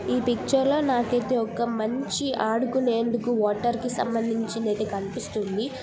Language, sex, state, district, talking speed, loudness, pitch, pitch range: Telugu, female, Telangana, Nalgonda, 125 wpm, -25 LUFS, 235 Hz, 220-250 Hz